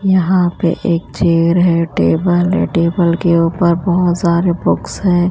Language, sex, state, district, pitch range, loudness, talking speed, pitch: Hindi, female, Punjab, Kapurthala, 170-180 Hz, -14 LUFS, 160 wpm, 175 Hz